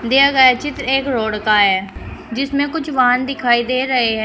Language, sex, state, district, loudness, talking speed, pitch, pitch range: Hindi, female, Uttar Pradesh, Shamli, -15 LUFS, 200 wpm, 255 Hz, 230-275 Hz